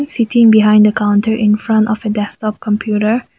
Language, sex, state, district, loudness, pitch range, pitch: English, female, Nagaland, Kohima, -13 LUFS, 210-220 Hz, 215 Hz